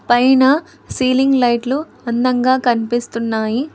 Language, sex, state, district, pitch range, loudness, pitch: Telugu, female, Telangana, Hyderabad, 240-265 Hz, -16 LUFS, 250 Hz